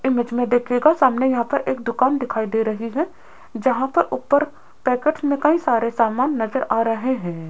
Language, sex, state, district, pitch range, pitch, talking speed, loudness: Hindi, female, Rajasthan, Jaipur, 230-285 Hz, 255 Hz, 190 wpm, -20 LUFS